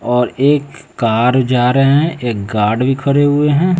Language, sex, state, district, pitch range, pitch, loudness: Hindi, male, Bihar, West Champaran, 120-145 Hz, 130 Hz, -14 LUFS